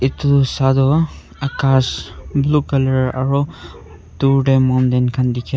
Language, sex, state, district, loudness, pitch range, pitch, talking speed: Nagamese, male, Nagaland, Kohima, -16 LUFS, 130-140 Hz, 135 Hz, 120 wpm